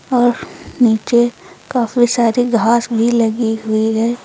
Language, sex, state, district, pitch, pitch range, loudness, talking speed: Hindi, female, Uttar Pradesh, Lucknow, 235 Hz, 225-240 Hz, -15 LUFS, 125 wpm